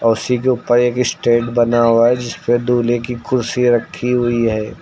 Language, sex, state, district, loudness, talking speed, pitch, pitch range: Hindi, male, Uttar Pradesh, Lucknow, -16 LUFS, 200 wpm, 120 Hz, 115-125 Hz